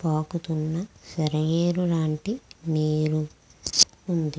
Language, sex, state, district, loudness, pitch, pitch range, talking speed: Telugu, female, Andhra Pradesh, Krishna, -25 LUFS, 160 Hz, 155-170 Hz, 70 wpm